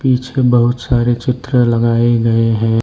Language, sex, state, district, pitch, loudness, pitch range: Hindi, male, Arunachal Pradesh, Lower Dibang Valley, 120 Hz, -14 LUFS, 115-125 Hz